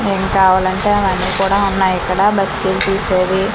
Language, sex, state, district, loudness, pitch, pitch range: Telugu, female, Andhra Pradesh, Manyam, -15 LUFS, 195 Hz, 185-195 Hz